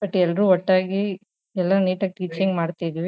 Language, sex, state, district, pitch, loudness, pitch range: Kannada, female, Karnataka, Chamarajanagar, 185 Hz, -22 LUFS, 180-195 Hz